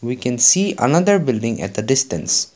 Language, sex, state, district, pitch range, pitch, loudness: English, male, Assam, Kamrup Metropolitan, 120-175 Hz, 130 Hz, -16 LUFS